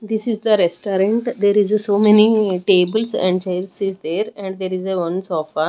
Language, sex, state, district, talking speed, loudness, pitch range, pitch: English, female, Haryana, Rohtak, 210 wpm, -18 LUFS, 185-215 Hz, 195 Hz